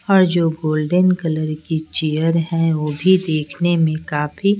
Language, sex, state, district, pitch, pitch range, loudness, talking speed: Hindi, female, Bihar, Patna, 160 Hz, 155-180 Hz, -18 LUFS, 155 wpm